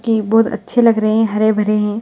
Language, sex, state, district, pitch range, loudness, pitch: Hindi, female, Bihar, Gaya, 215-225 Hz, -15 LUFS, 220 Hz